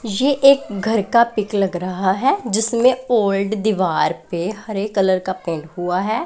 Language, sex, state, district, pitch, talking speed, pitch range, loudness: Hindi, female, Punjab, Pathankot, 205 Hz, 175 wpm, 185-235 Hz, -18 LUFS